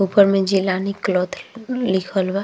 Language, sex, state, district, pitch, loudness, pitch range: Bhojpuri, female, Uttar Pradesh, Ghazipur, 195 Hz, -20 LUFS, 190-200 Hz